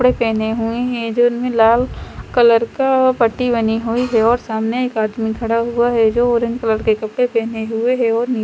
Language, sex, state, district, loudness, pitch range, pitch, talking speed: Hindi, female, Chandigarh, Chandigarh, -16 LUFS, 225-245 Hz, 230 Hz, 220 wpm